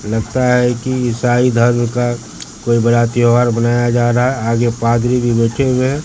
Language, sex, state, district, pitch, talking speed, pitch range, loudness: Hindi, male, Bihar, Katihar, 120 Hz, 190 wpm, 120-125 Hz, -14 LUFS